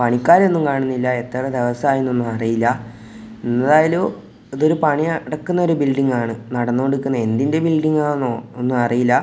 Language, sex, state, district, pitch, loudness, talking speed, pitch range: Malayalam, male, Kerala, Kozhikode, 130 Hz, -18 LUFS, 125 wpm, 120-150 Hz